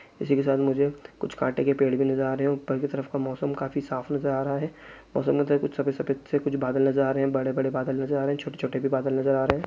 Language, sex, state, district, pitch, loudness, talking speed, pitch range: Hindi, male, Chhattisgarh, Bastar, 135 Hz, -26 LUFS, 315 wpm, 135-140 Hz